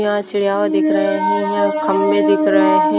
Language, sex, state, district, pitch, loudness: Hindi, female, Haryana, Rohtak, 200 Hz, -16 LUFS